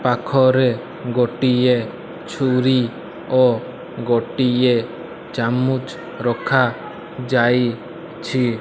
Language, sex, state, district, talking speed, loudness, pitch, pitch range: Odia, male, Odisha, Malkangiri, 50 wpm, -19 LUFS, 125 Hz, 120-130 Hz